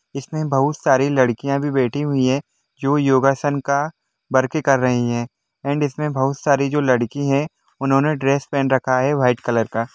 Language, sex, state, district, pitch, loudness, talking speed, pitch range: Hindi, male, Jharkhand, Sahebganj, 135 Hz, -19 LUFS, 180 wpm, 130-145 Hz